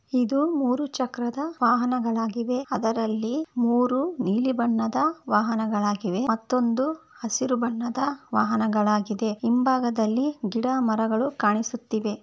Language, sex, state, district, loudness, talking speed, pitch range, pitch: Kannada, female, Karnataka, Bellary, -25 LUFS, 85 wpm, 220-260 Hz, 240 Hz